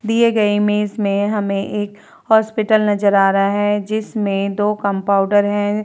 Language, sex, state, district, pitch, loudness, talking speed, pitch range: Hindi, female, Uttar Pradesh, Jalaun, 205 Hz, -17 LUFS, 155 wpm, 200-215 Hz